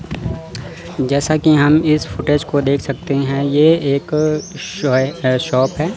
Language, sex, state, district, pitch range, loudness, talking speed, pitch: Hindi, male, Chandigarh, Chandigarh, 140-155 Hz, -16 LUFS, 130 wpm, 145 Hz